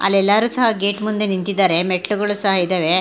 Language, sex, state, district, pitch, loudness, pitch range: Kannada, female, Karnataka, Mysore, 200 Hz, -16 LUFS, 185-210 Hz